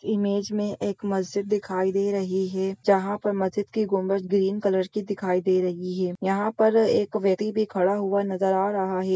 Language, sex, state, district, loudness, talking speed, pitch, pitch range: Hindi, female, Bihar, Begusarai, -25 LUFS, 205 wpm, 195 Hz, 190-205 Hz